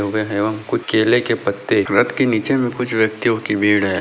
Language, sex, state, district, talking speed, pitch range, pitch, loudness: Hindi, male, Andhra Pradesh, Chittoor, 225 wpm, 105-120 Hz, 110 Hz, -18 LUFS